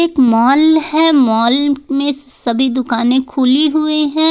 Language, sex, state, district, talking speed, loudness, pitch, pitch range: Hindi, female, Jharkhand, Ranchi, 125 wpm, -12 LUFS, 275 Hz, 255-305 Hz